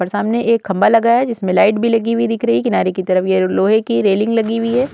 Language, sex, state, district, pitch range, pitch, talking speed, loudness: Hindi, female, Uttar Pradesh, Budaun, 190-230 Hz, 225 Hz, 290 wpm, -15 LUFS